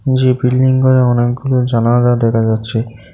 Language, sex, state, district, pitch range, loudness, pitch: Bengali, male, Tripura, South Tripura, 115-130 Hz, -13 LUFS, 120 Hz